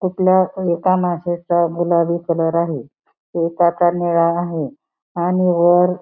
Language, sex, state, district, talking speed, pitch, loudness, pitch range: Marathi, female, Maharashtra, Pune, 120 wpm, 175 Hz, -17 LUFS, 170-180 Hz